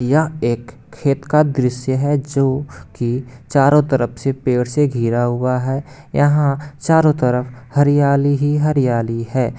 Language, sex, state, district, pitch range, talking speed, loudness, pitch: Hindi, male, Bihar, Gopalganj, 125-145 Hz, 145 wpm, -17 LUFS, 135 Hz